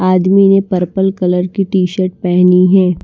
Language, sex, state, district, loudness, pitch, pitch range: Hindi, female, Maharashtra, Washim, -12 LUFS, 185 Hz, 180-190 Hz